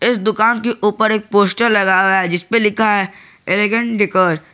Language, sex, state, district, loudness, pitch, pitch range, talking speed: Hindi, male, Jharkhand, Garhwa, -14 LUFS, 205 Hz, 190-220 Hz, 200 wpm